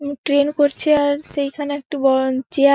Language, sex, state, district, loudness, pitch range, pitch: Bengali, female, West Bengal, Paschim Medinipur, -18 LUFS, 280-290 Hz, 285 Hz